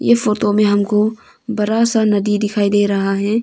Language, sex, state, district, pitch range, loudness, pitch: Hindi, female, Arunachal Pradesh, Longding, 205-225 Hz, -16 LUFS, 210 Hz